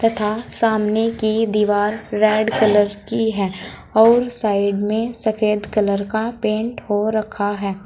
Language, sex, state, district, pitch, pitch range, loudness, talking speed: Hindi, female, Uttar Pradesh, Saharanpur, 215 Hz, 205-225 Hz, -19 LUFS, 135 wpm